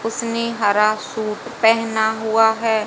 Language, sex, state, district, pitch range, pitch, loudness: Hindi, female, Haryana, Jhajjar, 220-230 Hz, 220 Hz, -18 LUFS